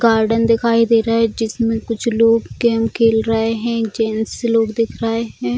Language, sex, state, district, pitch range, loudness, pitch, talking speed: Hindi, female, Bihar, Jamui, 225-230 Hz, -17 LUFS, 230 Hz, 180 wpm